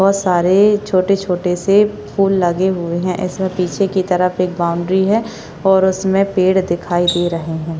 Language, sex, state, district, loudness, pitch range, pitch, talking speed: Hindi, female, Maharashtra, Chandrapur, -16 LUFS, 175-195 Hz, 185 Hz, 175 wpm